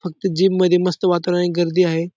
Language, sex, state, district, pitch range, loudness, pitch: Marathi, male, Maharashtra, Dhule, 175-185 Hz, -18 LUFS, 180 Hz